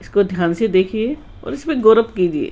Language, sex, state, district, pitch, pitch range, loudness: Hindi, female, Rajasthan, Jaipur, 220 Hz, 185-250 Hz, -17 LUFS